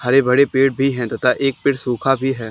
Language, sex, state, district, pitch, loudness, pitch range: Hindi, male, Haryana, Charkhi Dadri, 135 Hz, -17 LUFS, 125-135 Hz